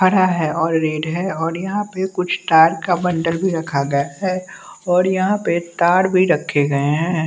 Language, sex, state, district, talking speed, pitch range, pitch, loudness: Hindi, male, Bihar, West Champaran, 200 wpm, 160-185 Hz, 175 Hz, -18 LUFS